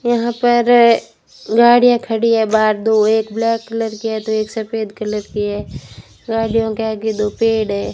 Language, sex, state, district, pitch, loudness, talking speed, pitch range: Hindi, female, Rajasthan, Bikaner, 225 Hz, -16 LUFS, 175 wpm, 215-230 Hz